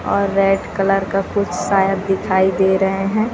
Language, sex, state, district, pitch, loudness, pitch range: Hindi, female, Chhattisgarh, Raipur, 195 Hz, -17 LUFS, 190-195 Hz